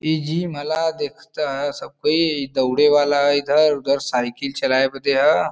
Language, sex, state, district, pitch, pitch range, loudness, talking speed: Bhojpuri, male, Uttar Pradesh, Varanasi, 145 Hz, 135-155 Hz, -19 LUFS, 175 wpm